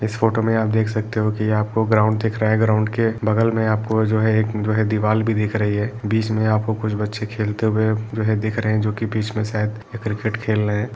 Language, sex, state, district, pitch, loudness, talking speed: Hindi, male, Uttar Pradesh, Etah, 110 Hz, -20 LUFS, 250 wpm